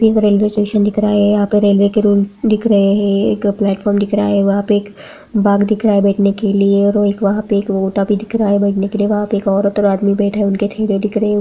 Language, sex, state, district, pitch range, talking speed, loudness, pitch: Hindi, female, Bihar, Jamui, 200-210 Hz, 280 wpm, -14 LUFS, 205 Hz